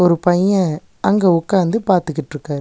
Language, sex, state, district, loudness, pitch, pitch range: Tamil, male, Tamil Nadu, Nilgiris, -17 LUFS, 180 Hz, 160-190 Hz